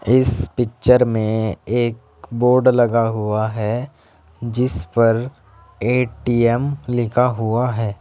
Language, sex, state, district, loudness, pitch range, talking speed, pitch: Hindi, male, Uttar Pradesh, Saharanpur, -18 LUFS, 110-125 Hz, 105 wpm, 115 Hz